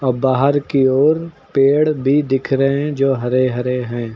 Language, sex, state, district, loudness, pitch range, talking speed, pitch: Hindi, male, Uttar Pradesh, Lucknow, -16 LUFS, 130-145 Hz, 185 wpm, 135 Hz